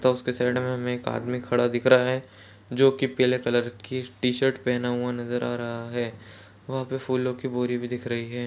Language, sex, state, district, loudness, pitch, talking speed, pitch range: Hindi, male, Uttar Pradesh, Hamirpur, -26 LUFS, 125 Hz, 210 wpm, 120-130 Hz